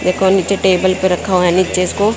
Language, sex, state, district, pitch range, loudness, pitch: Hindi, female, Haryana, Jhajjar, 180-190 Hz, -14 LUFS, 185 Hz